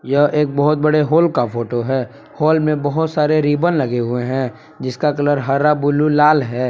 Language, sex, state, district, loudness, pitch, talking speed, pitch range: Hindi, male, Jharkhand, Palamu, -16 LUFS, 145 Hz, 195 wpm, 130-150 Hz